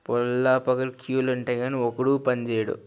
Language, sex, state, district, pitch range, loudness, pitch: Telugu, male, Andhra Pradesh, Anantapur, 120-130 Hz, -25 LUFS, 130 Hz